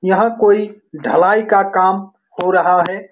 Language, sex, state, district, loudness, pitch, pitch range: Hindi, male, Bihar, Saran, -14 LUFS, 195 Hz, 185-210 Hz